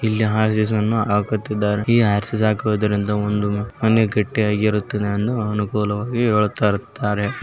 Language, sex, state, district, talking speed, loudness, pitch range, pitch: Kannada, male, Karnataka, Belgaum, 120 wpm, -19 LUFS, 105-110 Hz, 105 Hz